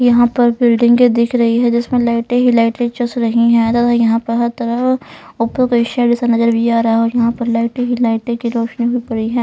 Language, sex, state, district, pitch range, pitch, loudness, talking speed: Hindi, male, Punjab, Pathankot, 230-240 Hz, 235 Hz, -14 LUFS, 215 wpm